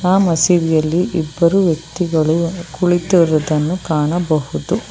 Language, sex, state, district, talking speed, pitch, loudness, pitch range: Kannada, female, Karnataka, Bangalore, 75 wpm, 170 Hz, -16 LUFS, 155-175 Hz